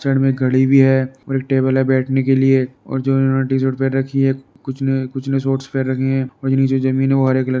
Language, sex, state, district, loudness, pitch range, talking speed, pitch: Hindi, male, Uttar Pradesh, Jalaun, -17 LUFS, 130-135 Hz, 285 wpm, 135 Hz